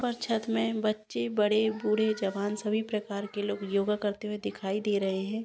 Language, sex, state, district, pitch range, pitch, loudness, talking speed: Hindi, female, Bihar, Jahanabad, 200-220 Hz, 210 Hz, -30 LUFS, 200 wpm